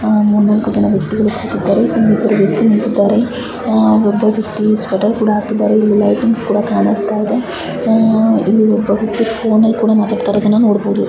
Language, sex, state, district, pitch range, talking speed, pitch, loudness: Kannada, female, Karnataka, Bijapur, 210-225 Hz, 120 wpm, 215 Hz, -13 LUFS